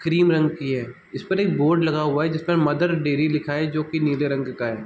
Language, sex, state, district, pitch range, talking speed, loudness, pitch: Hindi, male, Bihar, East Champaran, 145-165 Hz, 310 wpm, -22 LUFS, 155 Hz